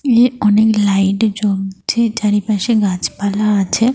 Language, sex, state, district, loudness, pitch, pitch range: Bengali, female, Jharkhand, Jamtara, -15 LUFS, 210 Hz, 200-225 Hz